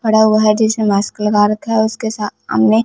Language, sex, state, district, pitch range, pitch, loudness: Hindi, female, Punjab, Fazilka, 205-220 Hz, 215 Hz, -15 LUFS